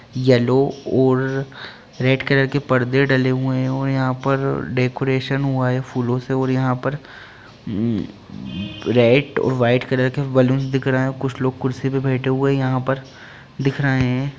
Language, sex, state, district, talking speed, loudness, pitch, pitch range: Hindi, male, Bihar, Jahanabad, 165 wpm, -19 LUFS, 130 Hz, 130-135 Hz